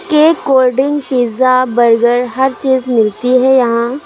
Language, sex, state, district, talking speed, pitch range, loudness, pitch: Hindi, female, Uttar Pradesh, Lucknow, 145 wpm, 245-265 Hz, -12 LUFS, 255 Hz